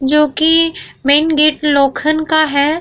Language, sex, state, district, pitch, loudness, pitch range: Hindi, female, Bihar, Vaishali, 305 Hz, -13 LUFS, 285-315 Hz